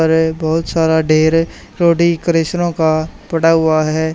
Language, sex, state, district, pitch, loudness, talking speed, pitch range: Hindi, male, Haryana, Charkhi Dadri, 160 Hz, -14 LUFS, 145 wpm, 160-165 Hz